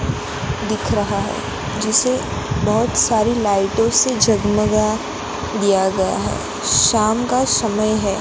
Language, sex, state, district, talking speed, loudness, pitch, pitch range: Hindi, female, Gujarat, Gandhinagar, 115 wpm, -18 LUFS, 215 Hz, 205-225 Hz